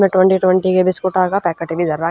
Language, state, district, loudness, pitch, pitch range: Haryanvi, Haryana, Rohtak, -15 LUFS, 185 Hz, 170-185 Hz